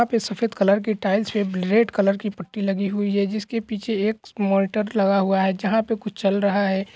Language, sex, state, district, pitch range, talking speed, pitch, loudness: Hindi, male, Bihar, East Champaran, 195-220 Hz, 230 wpm, 205 Hz, -22 LUFS